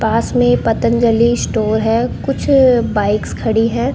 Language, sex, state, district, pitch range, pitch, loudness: Hindi, female, Rajasthan, Bikaner, 210-235 Hz, 225 Hz, -14 LUFS